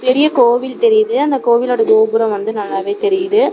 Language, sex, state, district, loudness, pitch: Tamil, female, Tamil Nadu, Namakkal, -14 LUFS, 255 Hz